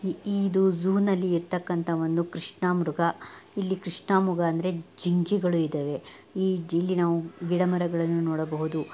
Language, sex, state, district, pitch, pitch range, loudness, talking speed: Kannada, female, Karnataka, Dakshina Kannada, 175 Hz, 165-185 Hz, -26 LUFS, 105 wpm